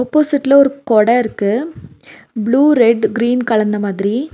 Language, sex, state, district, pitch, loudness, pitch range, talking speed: Tamil, female, Tamil Nadu, Nilgiris, 240 Hz, -14 LUFS, 215-275 Hz, 110 wpm